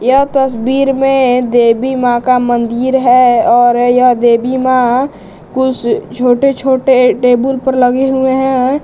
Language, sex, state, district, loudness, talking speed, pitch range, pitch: Hindi, male, Jharkhand, Garhwa, -11 LUFS, 145 wpm, 245-265 Hz, 255 Hz